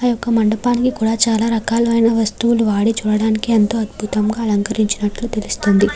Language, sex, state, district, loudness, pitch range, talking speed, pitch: Telugu, female, Andhra Pradesh, Krishna, -17 LUFS, 210-230 Hz, 130 wpm, 220 Hz